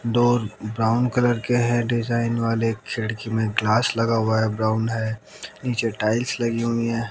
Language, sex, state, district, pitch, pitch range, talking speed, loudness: Hindi, male, Haryana, Jhajjar, 115 Hz, 110-120 Hz, 170 wpm, -22 LUFS